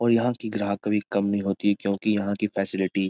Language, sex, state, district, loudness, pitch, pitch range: Hindi, male, Bihar, Jamui, -25 LUFS, 100 Hz, 100-105 Hz